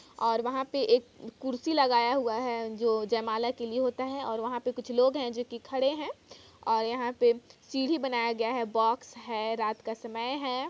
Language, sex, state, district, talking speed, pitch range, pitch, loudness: Hindi, female, Chhattisgarh, Kabirdham, 190 wpm, 230-260 Hz, 240 Hz, -30 LUFS